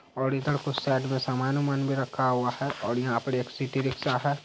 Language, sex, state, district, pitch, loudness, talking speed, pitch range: Hindi, male, Bihar, Saharsa, 135 Hz, -28 LUFS, 230 wpm, 130-140 Hz